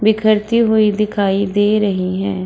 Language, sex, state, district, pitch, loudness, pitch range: Hindi, female, Bihar, Samastipur, 205 Hz, -15 LUFS, 195-215 Hz